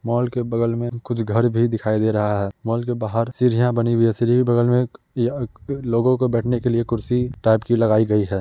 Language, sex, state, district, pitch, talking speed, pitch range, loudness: Hindi, male, Uttar Pradesh, Muzaffarnagar, 120 Hz, 255 wpm, 115-120 Hz, -20 LUFS